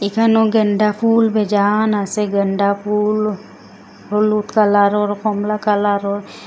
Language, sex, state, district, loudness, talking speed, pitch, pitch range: Bengali, female, Assam, Hailakandi, -16 LUFS, 110 wpm, 210 Hz, 200-215 Hz